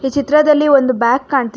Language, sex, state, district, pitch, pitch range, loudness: Kannada, female, Karnataka, Bangalore, 275 Hz, 255-295 Hz, -13 LUFS